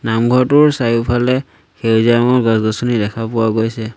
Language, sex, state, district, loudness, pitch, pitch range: Assamese, male, Assam, Sonitpur, -14 LUFS, 115 Hz, 110-125 Hz